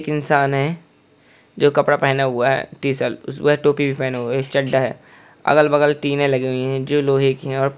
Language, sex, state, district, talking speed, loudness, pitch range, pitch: Hindi, male, West Bengal, Jhargram, 175 wpm, -18 LUFS, 135-145 Hz, 140 Hz